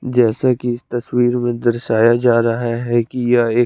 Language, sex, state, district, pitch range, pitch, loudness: Hindi, male, Chandigarh, Chandigarh, 115-120 Hz, 120 Hz, -17 LUFS